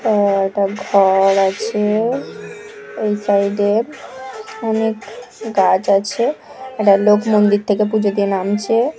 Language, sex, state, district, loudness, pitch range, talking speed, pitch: Bengali, female, West Bengal, Jhargram, -16 LUFS, 200-225 Hz, 120 wpm, 210 Hz